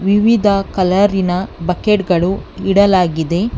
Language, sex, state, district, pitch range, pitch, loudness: Kannada, female, Karnataka, Bangalore, 180-200 Hz, 195 Hz, -14 LUFS